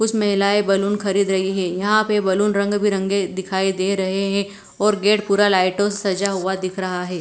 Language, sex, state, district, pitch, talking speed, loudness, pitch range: Hindi, female, Punjab, Fazilka, 195 Hz, 210 wpm, -19 LUFS, 190-205 Hz